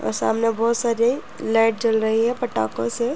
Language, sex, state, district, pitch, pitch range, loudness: Hindi, female, Uttar Pradesh, Jyotiba Phule Nagar, 225 Hz, 220-235 Hz, -21 LUFS